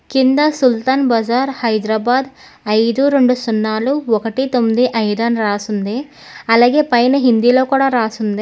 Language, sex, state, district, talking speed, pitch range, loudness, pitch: Telugu, female, Telangana, Hyderabad, 130 wpm, 220-265 Hz, -15 LUFS, 240 Hz